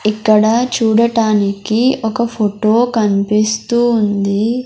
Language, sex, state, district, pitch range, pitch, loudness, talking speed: Telugu, male, Andhra Pradesh, Sri Satya Sai, 210-235 Hz, 220 Hz, -14 LUFS, 75 wpm